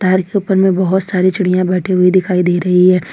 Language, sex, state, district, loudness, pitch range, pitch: Hindi, female, Jharkhand, Ranchi, -13 LUFS, 180-185 Hz, 185 Hz